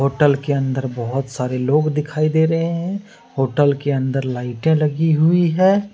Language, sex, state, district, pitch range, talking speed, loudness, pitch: Hindi, male, Jharkhand, Deoghar, 135-160 Hz, 170 wpm, -18 LUFS, 145 Hz